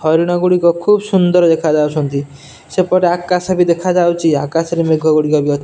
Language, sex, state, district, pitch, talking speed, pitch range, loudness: Odia, male, Odisha, Nuapada, 170 Hz, 170 wpm, 155-180 Hz, -14 LUFS